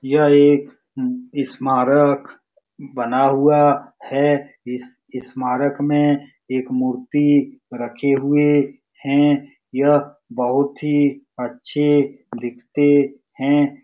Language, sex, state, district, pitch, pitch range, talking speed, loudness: Hindi, male, Uttar Pradesh, Muzaffarnagar, 140 Hz, 130-145 Hz, 85 wpm, -18 LUFS